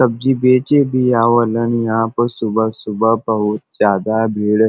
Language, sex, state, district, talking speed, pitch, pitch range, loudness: Bhojpuri, male, Uttar Pradesh, Varanasi, 155 wpm, 115 Hz, 110-120 Hz, -16 LUFS